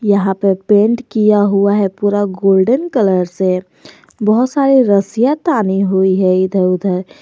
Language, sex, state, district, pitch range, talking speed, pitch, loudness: Hindi, female, Jharkhand, Garhwa, 190-215 Hz, 150 wpm, 200 Hz, -13 LUFS